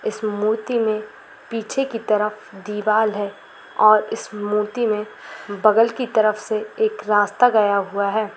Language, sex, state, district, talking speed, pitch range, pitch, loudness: Hindi, female, Chhattisgarh, Balrampur, 155 wpm, 210-220 Hz, 215 Hz, -20 LUFS